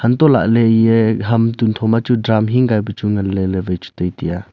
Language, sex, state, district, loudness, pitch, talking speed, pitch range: Wancho, male, Arunachal Pradesh, Longding, -15 LUFS, 110 Hz, 225 wpm, 100-115 Hz